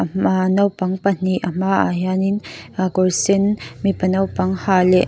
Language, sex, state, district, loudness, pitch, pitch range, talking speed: Mizo, female, Mizoram, Aizawl, -19 LUFS, 185 Hz, 185-195 Hz, 190 wpm